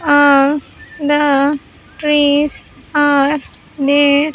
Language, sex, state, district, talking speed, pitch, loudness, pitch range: English, female, Andhra Pradesh, Sri Satya Sai, 70 wpm, 290 Hz, -14 LUFS, 285-295 Hz